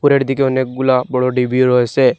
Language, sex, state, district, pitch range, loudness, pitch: Bengali, male, Assam, Hailakandi, 125-135 Hz, -15 LUFS, 130 Hz